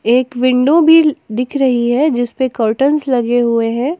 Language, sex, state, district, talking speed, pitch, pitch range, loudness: Hindi, female, Jharkhand, Ranchi, 180 wpm, 255 Hz, 240-280 Hz, -13 LUFS